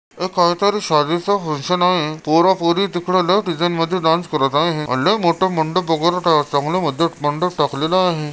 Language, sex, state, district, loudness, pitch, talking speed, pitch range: Marathi, male, Maharashtra, Chandrapur, -17 LUFS, 170 Hz, 160 wpm, 155-185 Hz